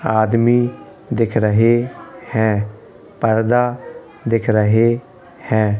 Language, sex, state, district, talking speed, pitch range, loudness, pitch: Hindi, male, Uttar Pradesh, Hamirpur, 85 wpm, 110-120 Hz, -17 LUFS, 115 Hz